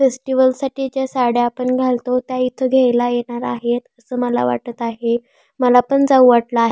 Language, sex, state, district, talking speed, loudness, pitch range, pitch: Marathi, female, Maharashtra, Pune, 170 wpm, -17 LUFS, 240-260 Hz, 250 Hz